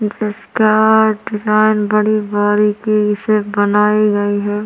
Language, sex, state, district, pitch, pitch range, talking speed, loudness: Hindi, female, Chhattisgarh, Korba, 210 Hz, 205-215 Hz, 105 wpm, -14 LUFS